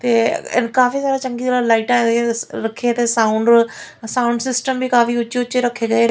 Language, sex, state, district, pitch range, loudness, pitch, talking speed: Punjabi, female, Punjab, Fazilka, 230-250 Hz, -17 LUFS, 240 Hz, 175 wpm